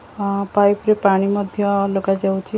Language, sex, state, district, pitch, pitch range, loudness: Odia, female, Odisha, Khordha, 200 Hz, 195-205 Hz, -18 LUFS